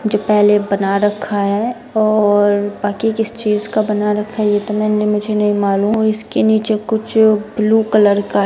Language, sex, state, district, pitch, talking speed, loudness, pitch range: Hindi, female, Bihar, Gopalganj, 210 Hz, 185 wpm, -15 LUFS, 205-215 Hz